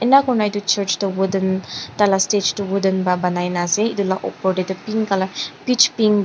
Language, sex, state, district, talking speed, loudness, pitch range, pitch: Nagamese, female, Nagaland, Dimapur, 220 wpm, -19 LUFS, 190-210 Hz, 195 Hz